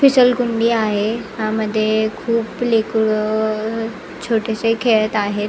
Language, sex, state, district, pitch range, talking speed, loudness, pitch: Marathi, female, Maharashtra, Nagpur, 215-230 Hz, 120 wpm, -18 LUFS, 220 Hz